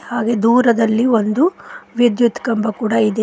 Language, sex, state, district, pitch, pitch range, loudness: Kannada, female, Karnataka, Koppal, 230 Hz, 220-240 Hz, -16 LUFS